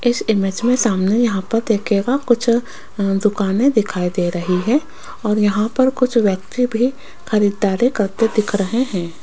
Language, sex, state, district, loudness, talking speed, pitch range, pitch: Hindi, female, Rajasthan, Jaipur, -18 LUFS, 160 wpm, 200-245 Hz, 215 Hz